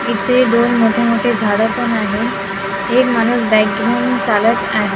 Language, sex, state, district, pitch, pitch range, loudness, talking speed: Marathi, female, Maharashtra, Gondia, 230 Hz, 205-240 Hz, -15 LUFS, 155 wpm